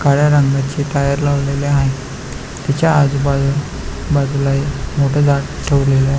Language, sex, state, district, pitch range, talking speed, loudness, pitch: Marathi, male, Maharashtra, Pune, 140-145 Hz, 135 wpm, -16 LUFS, 140 Hz